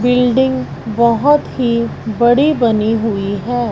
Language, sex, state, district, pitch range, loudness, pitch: Hindi, female, Punjab, Fazilka, 225-250 Hz, -14 LUFS, 235 Hz